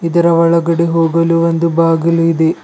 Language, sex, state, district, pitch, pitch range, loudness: Kannada, male, Karnataka, Bidar, 165 Hz, 165-170 Hz, -12 LUFS